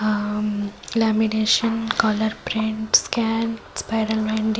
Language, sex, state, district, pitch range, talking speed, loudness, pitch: Odia, female, Odisha, Khordha, 215-225 Hz, 90 wpm, -22 LUFS, 220 Hz